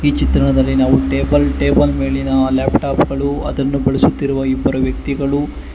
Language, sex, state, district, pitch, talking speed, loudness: Kannada, male, Karnataka, Bangalore, 130 Hz, 135 wpm, -16 LUFS